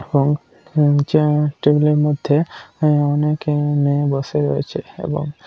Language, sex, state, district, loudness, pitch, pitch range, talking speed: Bengali, male, West Bengal, Kolkata, -18 LUFS, 150 Hz, 145-150 Hz, 120 wpm